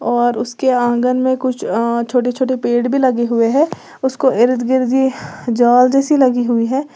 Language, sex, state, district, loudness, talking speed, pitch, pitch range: Hindi, female, Uttar Pradesh, Lalitpur, -15 LUFS, 190 wpm, 250 Hz, 240-260 Hz